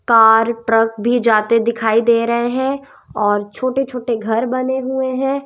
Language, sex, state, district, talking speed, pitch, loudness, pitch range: Hindi, female, Madhya Pradesh, Umaria, 165 wpm, 235 Hz, -16 LUFS, 225-255 Hz